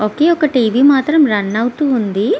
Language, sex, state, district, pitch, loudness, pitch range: Telugu, female, Andhra Pradesh, Visakhapatnam, 255 Hz, -13 LUFS, 215-295 Hz